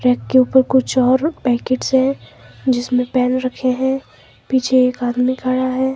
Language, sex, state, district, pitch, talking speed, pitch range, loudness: Hindi, male, Himachal Pradesh, Shimla, 255 Hz, 160 wpm, 250-260 Hz, -17 LUFS